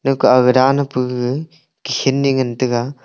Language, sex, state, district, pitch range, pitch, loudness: Wancho, male, Arunachal Pradesh, Longding, 125-140 Hz, 130 Hz, -16 LUFS